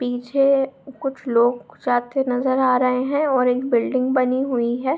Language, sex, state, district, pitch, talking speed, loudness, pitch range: Hindi, female, Bihar, Saharsa, 255 Hz, 180 wpm, -20 LUFS, 245-270 Hz